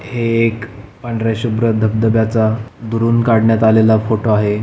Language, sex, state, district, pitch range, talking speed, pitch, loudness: Marathi, male, Maharashtra, Pune, 110-115 Hz, 130 wpm, 110 Hz, -15 LUFS